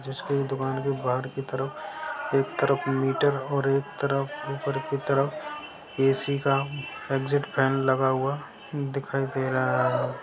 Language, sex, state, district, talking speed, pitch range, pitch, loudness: Hindi, male, Bihar, Sitamarhi, 155 wpm, 135-140 Hz, 135 Hz, -27 LUFS